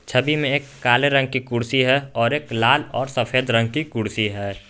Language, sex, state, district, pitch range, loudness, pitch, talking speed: Hindi, male, Jharkhand, Garhwa, 115-140 Hz, -20 LUFS, 125 Hz, 215 wpm